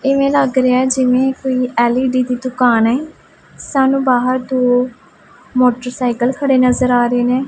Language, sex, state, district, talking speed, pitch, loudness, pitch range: Punjabi, female, Punjab, Pathankot, 150 wpm, 255 Hz, -15 LUFS, 250-265 Hz